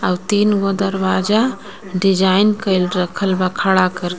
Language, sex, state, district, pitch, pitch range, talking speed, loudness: Bhojpuri, female, Jharkhand, Palamu, 190 Hz, 185-200 Hz, 130 wpm, -16 LUFS